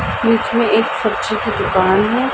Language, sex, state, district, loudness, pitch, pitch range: Hindi, female, Uttar Pradesh, Ghazipur, -16 LUFS, 225 Hz, 210-230 Hz